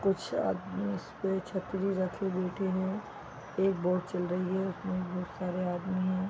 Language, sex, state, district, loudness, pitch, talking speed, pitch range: Hindi, female, Bihar, East Champaran, -33 LUFS, 185 Hz, 170 wpm, 180-190 Hz